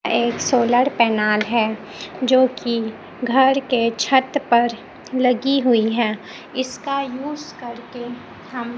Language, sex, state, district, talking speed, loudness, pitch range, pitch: Hindi, male, Chhattisgarh, Raipur, 115 wpm, -19 LUFS, 230-260 Hz, 240 Hz